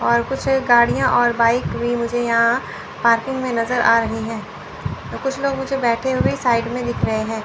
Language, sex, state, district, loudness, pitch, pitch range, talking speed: Hindi, female, Chandigarh, Chandigarh, -19 LUFS, 240 Hz, 230-255 Hz, 200 wpm